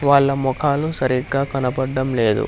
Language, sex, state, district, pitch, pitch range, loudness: Telugu, male, Telangana, Hyderabad, 135 Hz, 130-140 Hz, -19 LUFS